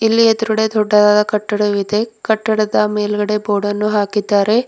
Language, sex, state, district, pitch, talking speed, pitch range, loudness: Kannada, female, Karnataka, Bidar, 210 Hz, 115 wpm, 210-220 Hz, -15 LUFS